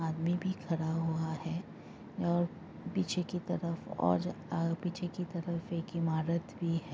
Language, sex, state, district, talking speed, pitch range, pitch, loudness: Hindi, female, Bihar, Begusarai, 155 wpm, 165-175 Hz, 170 Hz, -35 LUFS